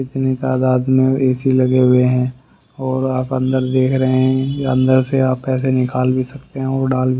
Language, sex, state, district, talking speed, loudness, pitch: Hindi, male, Haryana, Rohtak, 190 wpm, -16 LUFS, 130 Hz